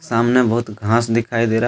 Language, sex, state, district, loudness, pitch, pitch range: Hindi, male, Jharkhand, Deoghar, -18 LUFS, 115 Hz, 115-120 Hz